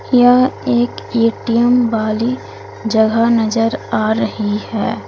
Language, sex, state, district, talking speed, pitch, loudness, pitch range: Hindi, female, Uttar Pradesh, Lalitpur, 105 wpm, 230 Hz, -15 LUFS, 220-240 Hz